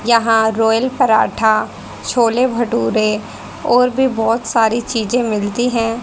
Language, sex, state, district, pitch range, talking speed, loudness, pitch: Hindi, female, Haryana, Rohtak, 225-245 Hz, 120 wpm, -15 LUFS, 230 Hz